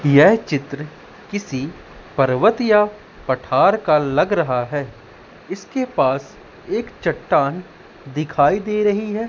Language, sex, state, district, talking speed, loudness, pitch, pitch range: Hindi, male, Madhya Pradesh, Katni, 115 wpm, -19 LUFS, 150 Hz, 140-210 Hz